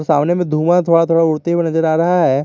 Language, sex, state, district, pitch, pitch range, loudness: Hindi, male, Jharkhand, Garhwa, 165 Hz, 160-170 Hz, -14 LUFS